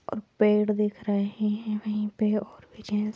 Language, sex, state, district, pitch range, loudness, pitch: Hindi, female, Bihar, Sitamarhi, 210-215 Hz, -27 LUFS, 210 Hz